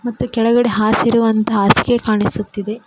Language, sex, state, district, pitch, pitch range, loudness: Kannada, female, Karnataka, Koppal, 225 Hz, 215-235 Hz, -15 LUFS